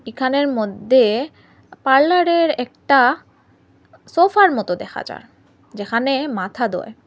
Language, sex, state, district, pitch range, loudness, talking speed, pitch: Bengali, female, Assam, Hailakandi, 225-295 Hz, -17 LUFS, 95 wpm, 260 Hz